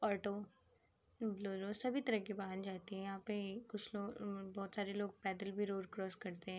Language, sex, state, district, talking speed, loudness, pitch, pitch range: Hindi, female, Uttar Pradesh, Hamirpur, 200 wpm, -44 LUFS, 200 Hz, 195-210 Hz